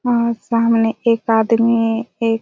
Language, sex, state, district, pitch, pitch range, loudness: Hindi, female, Chhattisgarh, Raigarh, 230 Hz, 225-235 Hz, -16 LUFS